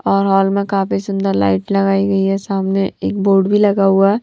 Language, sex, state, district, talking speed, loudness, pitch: Hindi, female, Punjab, Pathankot, 225 wpm, -15 LUFS, 195 Hz